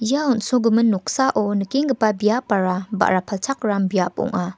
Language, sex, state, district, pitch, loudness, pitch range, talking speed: Garo, female, Meghalaya, West Garo Hills, 215 Hz, -20 LUFS, 195-250 Hz, 120 wpm